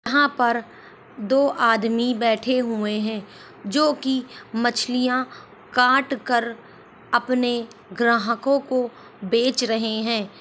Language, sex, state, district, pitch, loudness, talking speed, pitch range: Hindi, male, Chhattisgarh, Bilaspur, 240 Hz, -22 LUFS, 100 wpm, 225-255 Hz